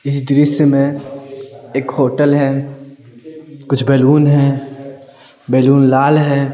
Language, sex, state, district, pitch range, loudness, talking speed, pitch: Hindi, male, Bihar, Patna, 135-140 Hz, -13 LUFS, 120 wpm, 140 Hz